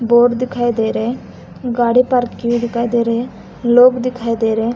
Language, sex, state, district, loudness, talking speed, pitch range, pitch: Marathi, female, Maharashtra, Pune, -16 LUFS, 225 wpm, 235-245 Hz, 240 Hz